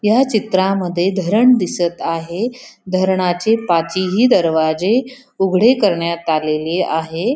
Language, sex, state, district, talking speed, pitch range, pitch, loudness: Marathi, female, Maharashtra, Pune, 100 wpm, 170-225 Hz, 185 Hz, -16 LUFS